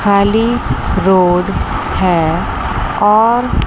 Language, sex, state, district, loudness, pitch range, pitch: Hindi, female, Chandigarh, Chandigarh, -13 LUFS, 190-225 Hz, 205 Hz